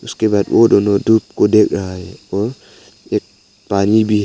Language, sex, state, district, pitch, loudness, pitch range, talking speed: Hindi, male, Arunachal Pradesh, Papum Pare, 105 Hz, -15 LUFS, 100-110 Hz, 200 wpm